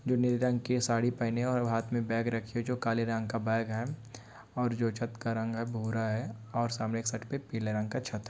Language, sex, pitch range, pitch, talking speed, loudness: Hindi, male, 115-120 Hz, 115 Hz, 265 wpm, -32 LUFS